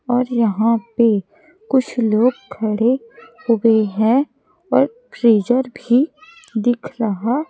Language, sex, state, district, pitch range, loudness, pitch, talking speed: Hindi, female, Chhattisgarh, Raipur, 220-260 Hz, -18 LUFS, 235 Hz, 105 wpm